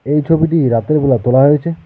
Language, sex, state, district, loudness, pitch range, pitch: Bengali, male, West Bengal, Alipurduar, -13 LUFS, 130-160 Hz, 150 Hz